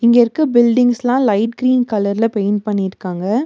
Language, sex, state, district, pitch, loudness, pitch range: Tamil, female, Tamil Nadu, Nilgiris, 230 Hz, -15 LUFS, 205-245 Hz